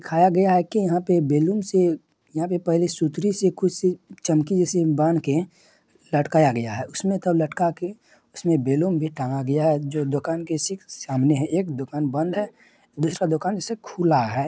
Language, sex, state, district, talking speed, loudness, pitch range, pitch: Hindi, male, Bihar, Madhepura, 180 wpm, -23 LUFS, 150-180 Hz, 165 Hz